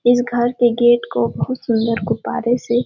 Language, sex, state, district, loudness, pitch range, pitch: Hindi, female, Chhattisgarh, Sarguja, -18 LUFS, 230-245 Hz, 240 Hz